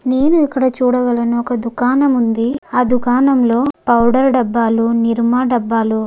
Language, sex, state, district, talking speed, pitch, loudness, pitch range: Telugu, female, Andhra Pradesh, Guntur, 120 wpm, 245 Hz, -14 LUFS, 235-260 Hz